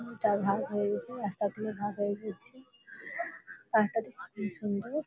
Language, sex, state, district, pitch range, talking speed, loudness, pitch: Bengali, female, West Bengal, Malda, 205-240 Hz, 175 wpm, -33 LUFS, 215 Hz